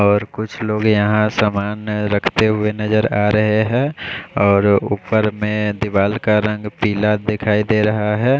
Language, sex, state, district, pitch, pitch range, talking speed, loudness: Hindi, male, Odisha, Khordha, 105 Hz, 105-110 Hz, 155 wpm, -17 LUFS